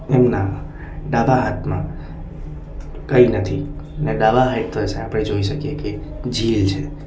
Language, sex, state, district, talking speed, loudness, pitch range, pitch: Gujarati, male, Gujarat, Valsad, 125 wpm, -19 LUFS, 90-130 Hz, 110 Hz